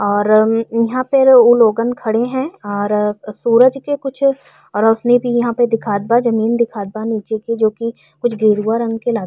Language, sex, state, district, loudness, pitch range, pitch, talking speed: Bhojpuri, female, Uttar Pradesh, Ghazipur, -15 LUFS, 215-240 Hz, 230 Hz, 195 wpm